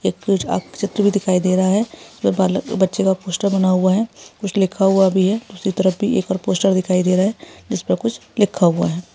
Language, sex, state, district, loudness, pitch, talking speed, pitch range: Hindi, female, Chhattisgarh, Bilaspur, -18 LUFS, 190 Hz, 230 wpm, 185-205 Hz